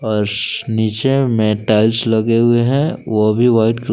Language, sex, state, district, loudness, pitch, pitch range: Hindi, male, Jharkhand, Palamu, -15 LUFS, 110 Hz, 110-120 Hz